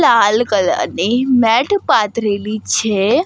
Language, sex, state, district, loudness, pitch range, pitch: Gujarati, female, Gujarat, Gandhinagar, -15 LUFS, 210-245 Hz, 220 Hz